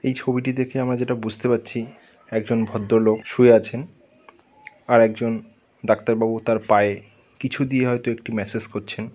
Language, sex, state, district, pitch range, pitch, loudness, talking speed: Bengali, male, West Bengal, North 24 Parganas, 110-125 Hz, 115 Hz, -21 LUFS, 145 wpm